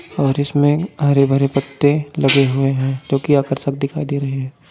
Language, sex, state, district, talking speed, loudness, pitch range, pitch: Hindi, male, Uttar Pradesh, Jyotiba Phule Nagar, 205 wpm, -17 LUFS, 135-145 Hz, 140 Hz